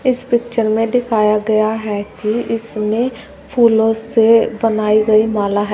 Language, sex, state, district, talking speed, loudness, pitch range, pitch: Hindi, female, Uttar Pradesh, Shamli, 145 wpm, -15 LUFS, 215-230 Hz, 225 Hz